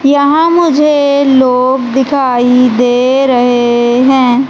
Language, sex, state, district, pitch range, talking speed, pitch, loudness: Hindi, female, Madhya Pradesh, Umaria, 245-280 Hz, 95 wpm, 260 Hz, -9 LUFS